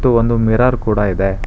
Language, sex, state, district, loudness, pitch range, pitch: Kannada, male, Karnataka, Bangalore, -15 LUFS, 100-120 Hz, 110 Hz